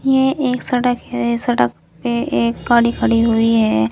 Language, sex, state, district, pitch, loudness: Hindi, female, Uttar Pradesh, Saharanpur, 235 Hz, -17 LUFS